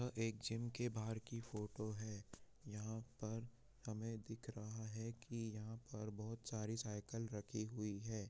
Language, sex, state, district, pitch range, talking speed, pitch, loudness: Hindi, male, Jharkhand, Jamtara, 110-115 Hz, 165 wpm, 110 Hz, -48 LUFS